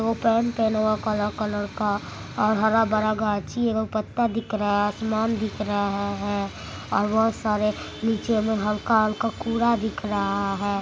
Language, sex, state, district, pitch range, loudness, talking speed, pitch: Maithili, male, Bihar, Supaul, 205-225 Hz, -24 LUFS, 150 wpm, 215 Hz